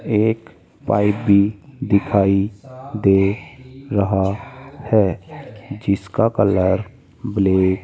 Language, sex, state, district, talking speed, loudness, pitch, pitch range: Hindi, male, Rajasthan, Jaipur, 75 wpm, -18 LUFS, 105 Hz, 95-120 Hz